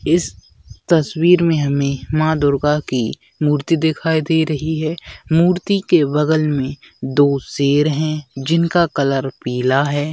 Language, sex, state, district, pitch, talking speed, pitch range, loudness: Hindi, male, Bihar, Jamui, 150 Hz, 140 wpm, 140-160 Hz, -17 LUFS